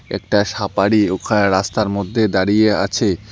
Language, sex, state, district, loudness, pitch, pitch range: Bengali, male, West Bengal, Alipurduar, -17 LUFS, 105 Hz, 100-110 Hz